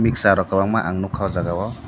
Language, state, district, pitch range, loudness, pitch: Kokborok, Tripura, Dhalai, 95-115 Hz, -20 LUFS, 100 Hz